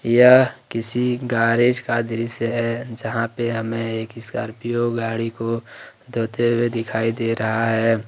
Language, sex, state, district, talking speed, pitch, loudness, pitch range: Hindi, male, Jharkhand, Ranchi, 140 wpm, 115 Hz, -21 LUFS, 115-120 Hz